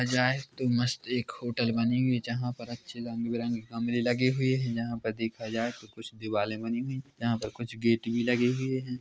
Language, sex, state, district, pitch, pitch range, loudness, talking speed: Hindi, male, Chhattisgarh, Korba, 120 Hz, 115-125 Hz, -30 LUFS, 225 wpm